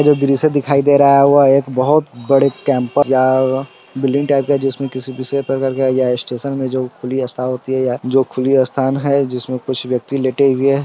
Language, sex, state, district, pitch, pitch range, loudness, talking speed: Hindi, male, Bihar, Sitamarhi, 135 Hz, 130-140 Hz, -15 LUFS, 135 wpm